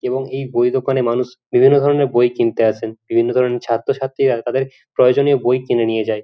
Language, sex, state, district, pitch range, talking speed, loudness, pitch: Bengali, male, West Bengal, Jhargram, 115-135 Hz, 190 wpm, -17 LUFS, 125 Hz